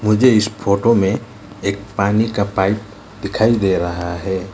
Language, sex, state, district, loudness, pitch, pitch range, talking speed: Hindi, male, West Bengal, Alipurduar, -17 LUFS, 100 Hz, 95-105 Hz, 160 wpm